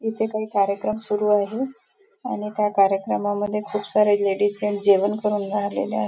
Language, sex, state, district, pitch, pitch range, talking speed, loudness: Marathi, female, Maharashtra, Nagpur, 210 Hz, 200-210 Hz, 160 wpm, -22 LUFS